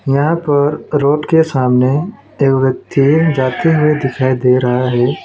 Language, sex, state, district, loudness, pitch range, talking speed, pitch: Hindi, male, West Bengal, Alipurduar, -13 LUFS, 130-150 Hz, 150 wpm, 140 Hz